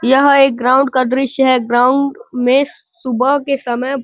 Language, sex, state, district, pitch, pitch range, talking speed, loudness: Hindi, male, Uttar Pradesh, Gorakhpur, 265 Hz, 250-275 Hz, 180 wpm, -14 LUFS